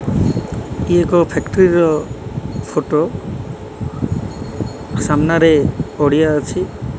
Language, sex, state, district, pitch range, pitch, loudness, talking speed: Odia, male, Odisha, Malkangiri, 140-165 Hz, 150 Hz, -17 LUFS, 70 wpm